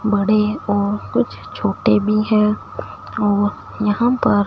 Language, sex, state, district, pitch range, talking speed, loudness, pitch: Hindi, female, Punjab, Fazilka, 205-215 Hz, 120 wpm, -18 LUFS, 210 Hz